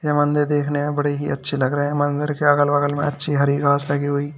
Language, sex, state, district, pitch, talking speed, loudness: Hindi, male, Uttar Pradesh, Lalitpur, 145 Hz, 275 wpm, -20 LUFS